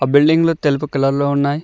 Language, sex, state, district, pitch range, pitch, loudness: Telugu, male, Telangana, Mahabubabad, 140-155 Hz, 145 Hz, -16 LUFS